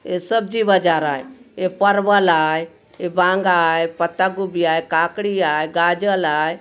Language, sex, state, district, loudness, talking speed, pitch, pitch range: Halbi, male, Chhattisgarh, Bastar, -18 LUFS, 155 wpm, 180 Hz, 165-195 Hz